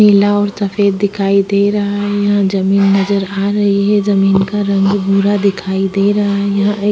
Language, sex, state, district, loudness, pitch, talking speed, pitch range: Hindi, female, Chhattisgarh, Korba, -13 LUFS, 200 Hz, 200 wpm, 195-205 Hz